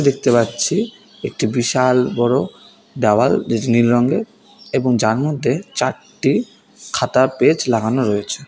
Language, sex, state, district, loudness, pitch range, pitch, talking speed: Bengali, male, West Bengal, Alipurduar, -17 LUFS, 120-150 Hz, 130 Hz, 115 wpm